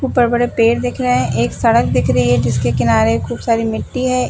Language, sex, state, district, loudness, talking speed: Hindi, female, Bihar, Gopalganj, -15 LUFS, 235 wpm